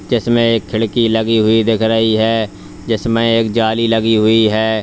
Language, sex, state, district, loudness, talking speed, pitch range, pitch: Hindi, male, Uttar Pradesh, Lalitpur, -14 LUFS, 175 wpm, 110-115 Hz, 110 Hz